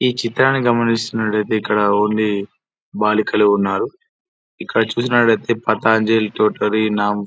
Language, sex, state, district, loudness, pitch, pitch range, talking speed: Telugu, male, Andhra Pradesh, Anantapur, -17 LUFS, 110 Hz, 105-115 Hz, 105 wpm